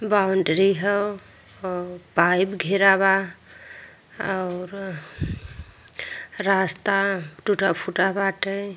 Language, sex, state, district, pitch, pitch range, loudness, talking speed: Hindi, female, Bihar, Vaishali, 195 Hz, 185-195 Hz, -23 LUFS, 70 wpm